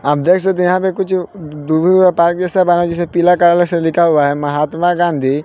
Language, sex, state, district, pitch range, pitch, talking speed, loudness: Hindi, male, Bihar, West Champaran, 155-180 Hz, 175 Hz, 220 wpm, -13 LUFS